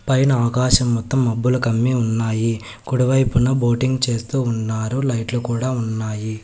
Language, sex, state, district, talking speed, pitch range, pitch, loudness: Telugu, male, Telangana, Hyderabad, 120 wpm, 115-130 Hz, 120 Hz, -19 LUFS